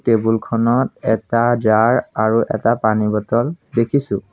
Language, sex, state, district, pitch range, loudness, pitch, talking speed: Assamese, male, Assam, Sonitpur, 110-120 Hz, -17 LUFS, 115 Hz, 125 wpm